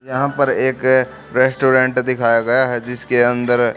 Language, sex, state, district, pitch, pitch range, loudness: Hindi, male, Haryana, Charkhi Dadri, 130 Hz, 120-130 Hz, -16 LUFS